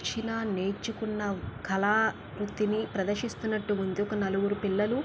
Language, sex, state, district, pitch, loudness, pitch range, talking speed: Telugu, female, Andhra Pradesh, Krishna, 205 Hz, -30 LUFS, 200-220 Hz, 105 wpm